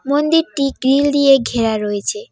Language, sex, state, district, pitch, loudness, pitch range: Bengali, female, West Bengal, Cooch Behar, 275 Hz, -15 LUFS, 235-290 Hz